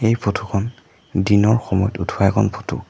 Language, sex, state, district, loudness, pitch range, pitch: Assamese, male, Assam, Sonitpur, -19 LUFS, 100-115 Hz, 105 Hz